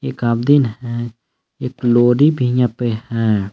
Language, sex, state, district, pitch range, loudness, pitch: Hindi, male, Jharkhand, Palamu, 115-125 Hz, -16 LUFS, 120 Hz